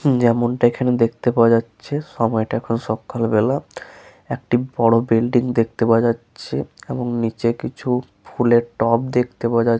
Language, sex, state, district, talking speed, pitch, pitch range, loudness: Bengali, male, West Bengal, Paschim Medinipur, 130 wpm, 120 Hz, 115-125 Hz, -19 LUFS